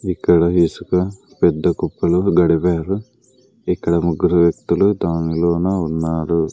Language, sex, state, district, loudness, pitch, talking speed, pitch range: Telugu, male, Andhra Pradesh, Sri Satya Sai, -17 LUFS, 85 Hz, 90 wpm, 85-95 Hz